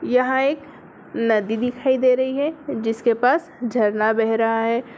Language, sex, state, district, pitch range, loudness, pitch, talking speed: Hindi, female, Bihar, Sitamarhi, 225-265 Hz, -20 LUFS, 245 Hz, 155 wpm